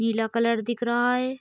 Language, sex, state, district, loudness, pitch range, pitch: Hindi, female, Uttar Pradesh, Ghazipur, -24 LUFS, 230-245 Hz, 235 Hz